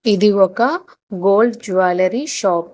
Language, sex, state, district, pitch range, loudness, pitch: Telugu, female, Telangana, Hyderabad, 185-235 Hz, -16 LUFS, 205 Hz